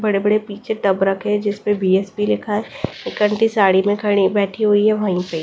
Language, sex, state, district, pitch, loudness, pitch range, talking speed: Hindi, female, Delhi, New Delhi, 205 Hz, -18 LUFS, 195-210 Hz, 200 wpm